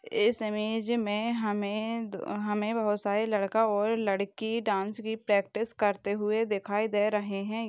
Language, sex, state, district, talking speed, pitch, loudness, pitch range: Hindi, female, Maharashtra, Aurangabad, 150 wpm, 210 Hz, -29 LUFS, 205-225 Hz